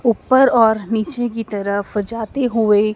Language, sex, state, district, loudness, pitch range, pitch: Hindi, female, Madhya Pradesh, Dhar, -17 LUFS, 210-240 Hz, 225 Hz